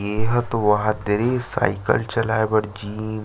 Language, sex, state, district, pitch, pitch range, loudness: Chhattisgarhi, male, Chhattisgarh, Sarguja, 110 Hz, 105-115 Hz, -21 LUFS